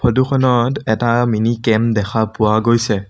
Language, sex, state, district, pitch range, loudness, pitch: Assamese, male, Assam, Sonitpur, 110-120 Hz, -16 LUFS, 115 Hz